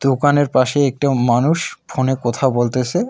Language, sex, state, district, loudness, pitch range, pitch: Bengali, male, West Bengal, Alipurduar, -17 LUFS, 125-145 Hz, 135 Hz